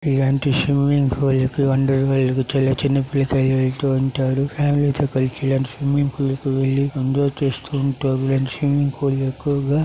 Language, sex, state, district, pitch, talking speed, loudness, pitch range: Telugu, male, Andhra Pradesh, Chittoor, 135 Hz, 120 wpm, -20 LUFS, 135-140 Hz